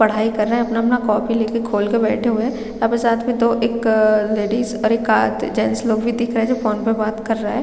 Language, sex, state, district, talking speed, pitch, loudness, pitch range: Hindi, female, Chhattisgarh, Raigarh, 265 wpm, 225 Hz, -18 LUFS, 220-235 Hz